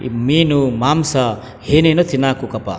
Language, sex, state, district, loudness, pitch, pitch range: Kannada, male, Karnataka, Chamarajanagar, -15 LUFS, 135 Hz, 120-150 Hz